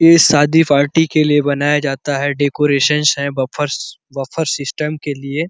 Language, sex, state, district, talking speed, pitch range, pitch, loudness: Hindi, male, Chhattisgarh, Bastar, 175 wpm, 140-150 Hz, 145 Hz, -15 LUFS